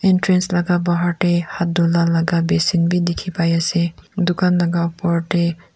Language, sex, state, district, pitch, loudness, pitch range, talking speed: Nagamese, female, Nagaland, Kohima, 175 Hz, -18 LUFS, 170-180 Hz, 165 wpm